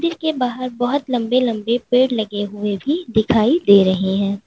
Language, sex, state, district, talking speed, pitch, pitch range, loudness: Hindi, female, Uttar Pradesh, Lalitpur, 175 wpm, 240 Hz, 205-255 Hz, -18 LUFS